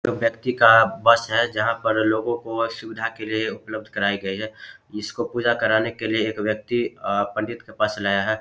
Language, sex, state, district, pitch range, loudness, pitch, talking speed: Hindi, male, Bihar, Samastipur, 110-115 Hz, -22 LUFS, 110 Hz, 205 wpm